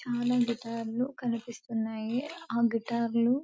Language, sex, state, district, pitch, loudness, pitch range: Telugu, female, Telangana, Nalgonda, 235 Hz, -31 LUFS, 230-245 Hz